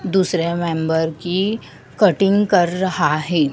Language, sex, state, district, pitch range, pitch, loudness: Hindi, female, Madhya Pradesh, Dhar, 160-190 Hz, 175 Hz, -18 LUFS